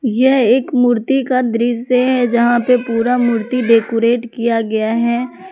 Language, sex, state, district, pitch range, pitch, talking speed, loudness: Hindi, female, Jharkhand, Palamu, 230-250 Hz, 240 Hz, 150 wpm, -15 LUFS